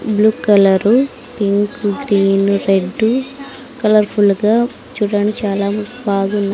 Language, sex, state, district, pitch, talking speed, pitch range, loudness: Telugu, female, Andhra Pradesh, Sri Satya Sai, 210 Hz, 100 wpm, 200-235 Hz, -15 LUFS